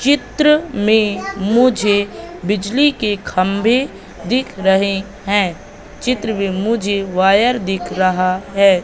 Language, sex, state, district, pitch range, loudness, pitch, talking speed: Hindi, female, Madhya Pradesh, Katni, 195-235 Hz, -16 LUFS, 205 Hz, 110 wpm